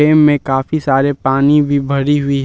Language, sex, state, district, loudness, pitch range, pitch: Hindi, male, Jharkhand, Palamu, -13 LUFS, 135-150 Hz, 140 Hz